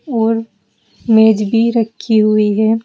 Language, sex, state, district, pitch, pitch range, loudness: Hindi, female, Uttar Pradesh, Saharanpur, 220 Hz, 215-225 Hz, -13 LUFS